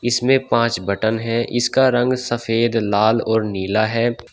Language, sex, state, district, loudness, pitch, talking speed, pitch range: Hindi, male, Uttar Pradesh, Shamli, -18 LUFS, 115 Hz, 150 wpm, 110-120 Hz